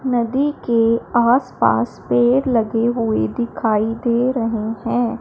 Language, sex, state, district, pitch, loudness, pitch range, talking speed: Hindi, female, Punjab, Fazilka, 235 Hz, -18 LUFS, 225-245 Hz, 115 wpm